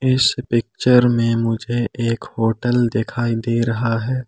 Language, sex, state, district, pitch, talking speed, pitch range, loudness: Hindi, male, Jharkhand, Palamu, 115 Hz, 140 wpm, 115-120 Hz, -19 LUFS